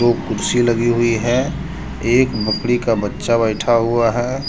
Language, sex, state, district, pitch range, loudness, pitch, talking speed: Hindi, male, Jharkhand, Deoghar, 115-120 Hz, -17 LUFS, 120 Hz, 160 wpm